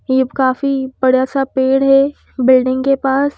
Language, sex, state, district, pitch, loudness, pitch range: Hindi, female, Madhya Pradesh, Bhopal, 265 Hz, -14 LUFS, 260-275 Hz